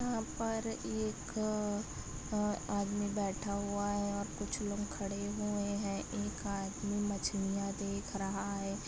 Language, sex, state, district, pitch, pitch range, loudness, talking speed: Hindi, female, Chhattisgarh, Raigarh, 200 Hz, 195-205 Hz, -37 LUFS, 135 wpm